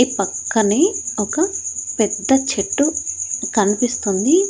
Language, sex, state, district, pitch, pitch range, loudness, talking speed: Telugu, female, Andhra Pradesh, Annamaya, 245 Hz, 210-310 Hz, -18 LUFS, 80 wpm